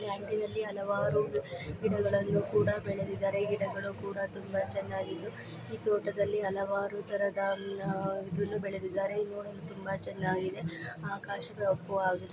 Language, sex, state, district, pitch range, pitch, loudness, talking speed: Kannada, female, Karnataka, Chamarajanagar, 195-200 Hz, 200 Hz, -34 LUFS, 120 wpm